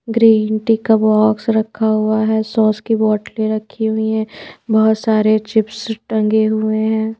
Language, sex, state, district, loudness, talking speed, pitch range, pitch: Hindi, female, Madhya Pradesh, Bhopal, -16 LUFS, 165 wpm, 215-220 Hz, 220 Hz